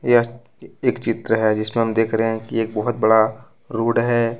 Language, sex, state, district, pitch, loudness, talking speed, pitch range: Hindi, male, Jharkhand, Ranchi, 115 Hz, -20 LUFS, 205 wpm, 110-115 Hz